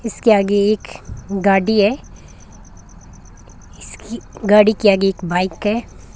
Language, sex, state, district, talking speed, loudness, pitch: Hindi, female, Rajasthan, Bikaner, 115 wpm, -16 LUFS, 195 Hz